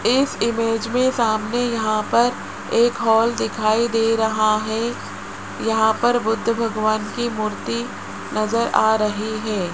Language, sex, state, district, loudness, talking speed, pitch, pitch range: Hindi, male, Rajasthan, Jaipur, -20 LUFS, 135 wpm, 225 Hz, 215-235 Hz